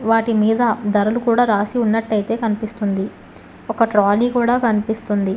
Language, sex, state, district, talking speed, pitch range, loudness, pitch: Telugu, female, Telangana, Hyderabad, 125 wpm, 210-230 Hz, -18 LUFS, 220 Hz